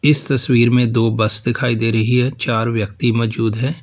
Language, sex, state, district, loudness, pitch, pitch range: Hindi, male, Uttar Pradesh, Lalitpur, -16 LUFS, 120 Hz, 115-125 Hz